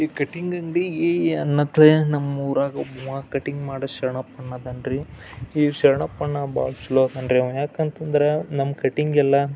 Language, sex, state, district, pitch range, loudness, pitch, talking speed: Kannada, male, Karnataka, Belgaum, 130-155 Hz, -22 LUFS, 140 Hz, 125 wpm